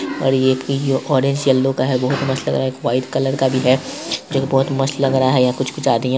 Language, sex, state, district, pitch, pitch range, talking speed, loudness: Hindi, male, Bihar, Saharsa, 135 Hz, 130-135 Hz, 290 wpm, -18 LUFS